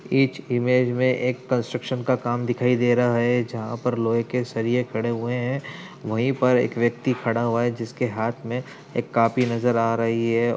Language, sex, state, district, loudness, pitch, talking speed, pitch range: Hindi, male, Uttar Pradesh, Budaun, -23 LUFS, 120 Hz, 200 wpm, 115-125 Hz